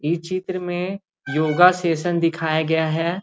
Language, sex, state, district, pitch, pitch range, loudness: Magahi, male, Bihar, Gaya, 170 Hz, 160-180 Hz, -21 LUFS